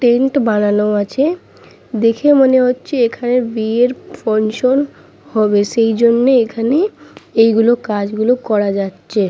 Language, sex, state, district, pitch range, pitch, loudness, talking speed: Bengali, female, West Bengal, Purulia, 215-255 Hz, 230 Hz, -14 LUFS, 115 wpm